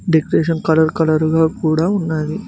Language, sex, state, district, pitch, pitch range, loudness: Telugu, male, Telangana, Mahabubabad, 160 Hz, 155-165 Hz, -16 LUFS